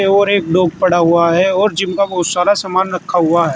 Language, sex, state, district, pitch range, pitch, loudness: Hindi, male, Uttar Pradesh, Saharanpur, 170-195 Hz, 185 Hz, -14 LUFS